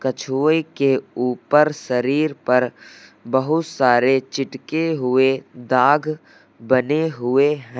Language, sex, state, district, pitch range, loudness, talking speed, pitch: Hindi, male, Uttar Pradesh, Lucknow, 125-150 Hz, -19 LUFS, 100 wpm, 135 Hz